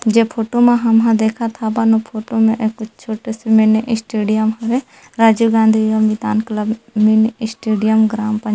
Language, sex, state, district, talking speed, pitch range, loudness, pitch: Chhattisgarhi, female, Chhattisgarh, Rajnandgaon, 170 wpm, 220-225 Hz, -15 LUFS, 220 Hz